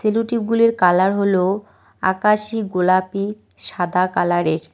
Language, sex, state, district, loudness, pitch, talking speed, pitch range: Bengali, female, West Bengal, Cooch Behar, -19 LUFS, 195 Hz, 115 wpm, 180-215 Hz